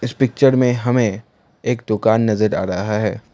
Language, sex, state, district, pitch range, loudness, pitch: Hindi, male, Assam, Kamrup Metropolitan, 110-125 Hz, -18 LUFS, 115 Hz